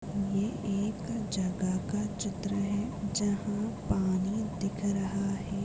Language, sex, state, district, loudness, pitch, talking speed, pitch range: Hindi, female, Maharashtra, Dhule, -32 LUFS, 200 Hz, 115 wpm, 195-205 Hz